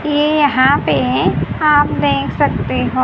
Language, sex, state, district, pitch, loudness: Hindi, female, Haryana, Charkhi Dadri, 265 Hz, -14 LUFS